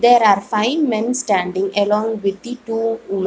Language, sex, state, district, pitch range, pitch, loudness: English, female, Telangana, Hyderabad, 195-235 Hz, 215 Hz, -18 LUFS